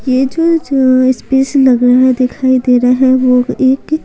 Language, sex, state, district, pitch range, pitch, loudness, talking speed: Hindi, female, Bihar, Patna, 255-270 Hz, 260 Hz, -11 LUFS, 205 wpm